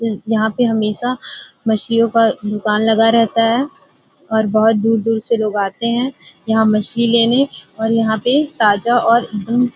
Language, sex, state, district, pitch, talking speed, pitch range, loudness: Hindi, female, Uttar Pradesh, Gorakhpur, 225 Hz, 170 wpm, 220-235 Hz, -15 LUFS